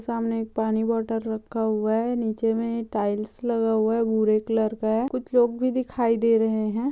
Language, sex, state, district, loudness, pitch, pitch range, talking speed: Hindi, female, Chhattisgarh, Bastar, -24 LUFS, 225 Hz, 220-230 Hz, 210 wpm